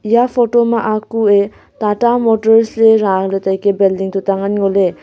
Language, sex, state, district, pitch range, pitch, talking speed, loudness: Wancho, female, Arunachal Pradesh, Longding, 195-225 Hz, 210 Hz, 180 wpm, -14 LUFS